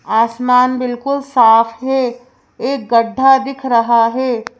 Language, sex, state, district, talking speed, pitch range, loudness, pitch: Hindi, female, Madhya Pradesh, Bhopal, 115 wpm, 230-265 Hz, -14 LUFS, 250 Hz